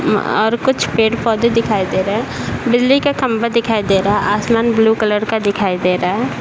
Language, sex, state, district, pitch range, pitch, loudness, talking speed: Hindi, male, Bihar, Jahanabad, 210-235 Hz, 225 Hz, -15 LUFS, 235 wpm